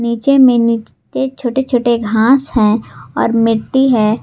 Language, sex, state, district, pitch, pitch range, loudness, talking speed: Hindi, female, Jharkhand, Garhwa, 235 Hz, 225-265 Hz, -13 LUFS, 140 wpm